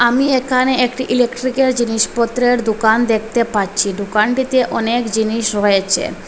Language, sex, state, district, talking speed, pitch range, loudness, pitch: Bengali, female, Assam, Hailakandi, 115 wpm, 220-250 Hz, -16 LUFS, 235 Hz